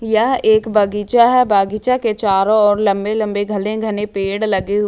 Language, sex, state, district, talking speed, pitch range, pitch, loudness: Hindi, female, Jharkhand, Ranchi, 185 wpm, 205-220 Hz, 210 Hz, -16 LUFS